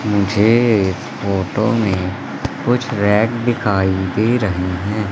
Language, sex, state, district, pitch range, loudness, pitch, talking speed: Hindi, male, Madhya Pradesh, Katni, 95-115 Hz, -17 LUFS, 100 Hz, 115 wpm